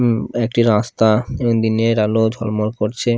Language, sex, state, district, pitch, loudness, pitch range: Bengali, male, Odisha, Khordha, 115 Hz, -17 LUFS, 110-120 Hz